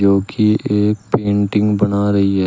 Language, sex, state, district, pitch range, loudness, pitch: Hindi, male, Uttar Pradesh, Shamli, 100-105 Hz, -16 LUFS, 100 Hz